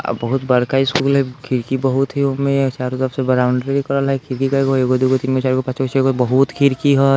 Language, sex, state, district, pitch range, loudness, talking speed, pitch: Bajjika, male, Bihar, Vaishali, 130-135 Hz, -17 LUFS, 270 wpm, 135 Hz